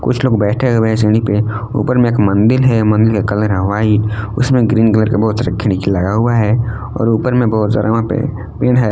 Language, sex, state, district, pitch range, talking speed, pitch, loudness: Hindi, male, Jharkhand, Palamu, 105-120 Hz, 240 wpm, 110 Hz, -14 LUFS